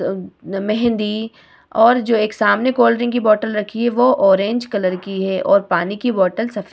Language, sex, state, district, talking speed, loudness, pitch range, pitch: Hindi, female, Bihar, Vaishali, 195 wpm, -17 LUFS, 195-240 Hz, 215 Hz